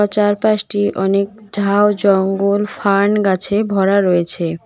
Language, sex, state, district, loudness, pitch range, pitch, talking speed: Bengali, female, West Bengal, Cooch Behar, -15 LUFS, 195-205 Hz, 200 Hz, 115 wpm